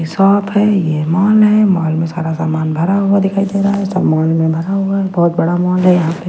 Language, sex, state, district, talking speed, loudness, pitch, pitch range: Hindi, female, Bihar, Patna, 265 wpm, -13 LUFS, 180 Hz, 160-195 Hz